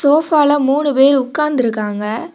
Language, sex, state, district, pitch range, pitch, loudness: Tamil, female, Tamil Nadu, Kanyakumari, 245-300 Hz, 280 Hz, -14 LUFS